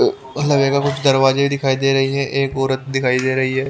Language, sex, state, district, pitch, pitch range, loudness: Hindi, male, Haryana, Jhajjar, 135 Hz, 135-140 Hz, -17 LUFS